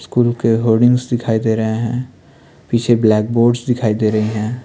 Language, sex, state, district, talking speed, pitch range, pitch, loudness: Hindi, male, Uttarakhand, Tehri Garhwal, 180 wpm, 110-120 Hz, 115 Hz, -16 LUFS